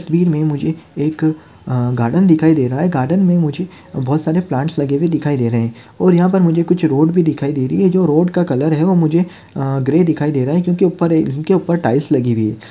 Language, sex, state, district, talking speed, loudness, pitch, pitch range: Hindi, male, Maharashtra, Chandrapur, 260 wpm, -15 LUFS, 155 Hz, 140-175 Hz